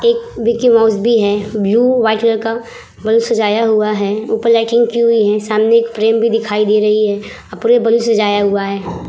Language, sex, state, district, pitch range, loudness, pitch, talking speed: Hindi, female, Uttar Pradesh, Hamirpur, 210-230 Hz, -13 LUFS, 225 Hz, 210 wpm